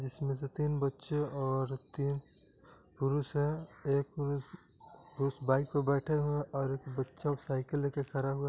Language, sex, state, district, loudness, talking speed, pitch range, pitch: Hindi, male, Bihar, Gaya, -35 LUFS, 160 wpm, 135-145 Hz, 140 Hz